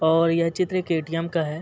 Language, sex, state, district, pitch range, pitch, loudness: Hindi, male, Uttar Pradesh, Muzaffarnagar, 160-170 Hz, 165 Hz, -23 LUFS